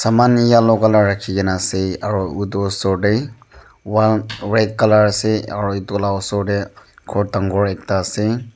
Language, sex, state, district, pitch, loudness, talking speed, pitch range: Nagamese, male, Nagaland, Dimapur, 100 Hz, -17 LUFS, 140 wpm, 100-110 Hz